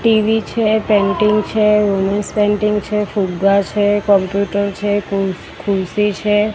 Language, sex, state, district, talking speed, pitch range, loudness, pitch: Gujarati, female, Gujarat, Gandhinagar, 110 wpm, 200-210 Hz, -16 LUFS, 205 Hz